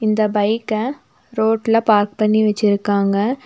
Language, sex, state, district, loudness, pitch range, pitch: Tamil, female, Tamil Nadu, Nilgiris, -17 LUFS, 205-225 Hz, 215 Hz